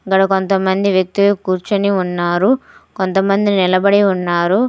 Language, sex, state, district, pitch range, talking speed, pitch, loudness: Telugu, female, Telangana, Hyderabad, 185-200 Hz, 100 wpm, 195 Hz, -15 LUFS